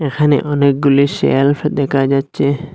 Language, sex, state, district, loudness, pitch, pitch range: Bengali, male, Assam, Hailakandi, -14 LUFS, 140 Hz, 140-145 Hz